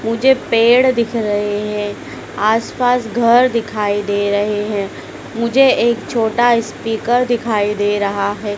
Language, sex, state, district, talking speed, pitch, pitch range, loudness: Hindi, female, Madhya Pradesh, Dhar, 140 wpm, 225 Hz, 205-240 Hz, -15 LUFS